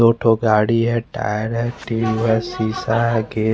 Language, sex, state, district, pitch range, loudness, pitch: Hindi, male, Chandigarh, Chandigarh, 110-115 Hz, -19 LUFS, 115 Hz